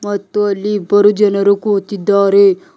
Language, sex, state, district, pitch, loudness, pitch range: Kannada, male, Karnataka, Bidar, 200 Hz, -13 LUFS, 200-205 Hz